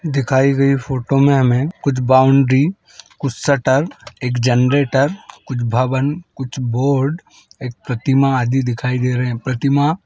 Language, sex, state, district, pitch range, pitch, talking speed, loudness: Hindi, male, Chhattisgarh, Rajnandgaon, 125-140 Hz, 135 Hz, 135 wpm, -16 LUFS